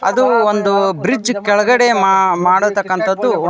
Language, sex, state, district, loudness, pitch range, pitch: Kannada, male, Karnataka, Dharwad, -13 LUFS, 195-240 Hz, 205 Hz